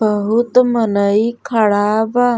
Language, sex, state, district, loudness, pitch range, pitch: Bhojpuri, female, Uttar Pradesh, Gorakhpur, -15 LUFS, 210-240 Hz, 220 Hz